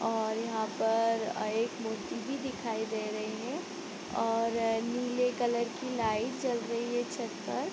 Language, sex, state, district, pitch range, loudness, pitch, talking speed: Hindi, female, Bihar, Sitamarhi, 220-245 Hz, -33 LUFS, 230 Hz, 170 wpm